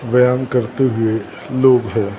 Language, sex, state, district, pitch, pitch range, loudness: Hindi, male, Maharashtra, Gondia, 125 Hz, 110-130 Hz, -16 LUFS